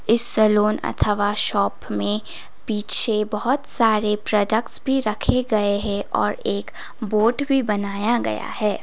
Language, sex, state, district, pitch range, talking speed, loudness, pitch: Hindi, female, Sikkim, Gangtok, 205-230 Hz, 135 wpm, -19 LUFS, 215 Hz